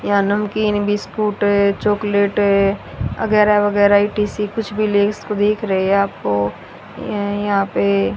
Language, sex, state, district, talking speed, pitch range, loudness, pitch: Hindi, female, Haryana, Rohtak, 140 wpm, 200-210 Hz, -17 LUFS, 205 Hz